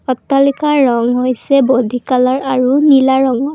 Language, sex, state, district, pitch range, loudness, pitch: Assamese, female, Assam, Kamrup Metropolitan, 250-275 Hz, -12 LUFS, 265 Hz